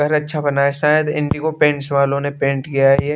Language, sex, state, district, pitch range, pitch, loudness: Hindi, male, Bihar, West Champaran, 140-150 Hz, 145 Hz, -17 LUFS